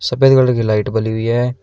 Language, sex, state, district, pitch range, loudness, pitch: Hindi, male, Uttar Pradesh, Shamli, 110-125 Hz, -15 LUFS, 120 Hz